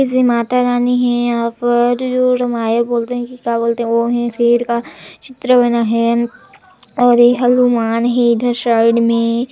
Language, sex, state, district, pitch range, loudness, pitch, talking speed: Hindi, female, Chhattisgarh, Sarguja, 235-245 Hz, -14 LUFS, 240 Hz, 185 wpm